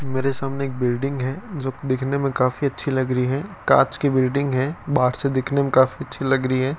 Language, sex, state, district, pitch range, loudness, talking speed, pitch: Hindi, male, Rajasthan, Bikaner, 130-140 Hz, -22 LUFS, 230 wpm, 135 Hz